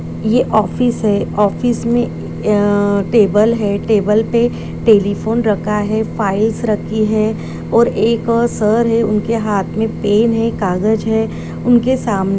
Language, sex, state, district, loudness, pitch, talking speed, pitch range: Hindi, female, Bihar, Sitamarhi, -15 LUFS, 215 Hz, 135 wpm, 205-230 Hz